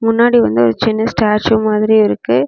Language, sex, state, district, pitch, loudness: Tamil, female, Tamil Nadu, Namakkal, 215 Hz, -13 LUFS